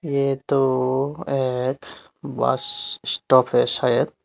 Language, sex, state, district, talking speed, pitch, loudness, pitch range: Hindi, male, Tripura, Unakoti, 100 wpm, 135 Hz, -21 LUFS, 130-140 Hz